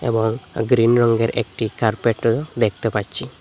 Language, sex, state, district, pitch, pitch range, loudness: Bengali, male, Assam, Hailakandi, 115 Hz, 110-120 Hz, -19 LUFS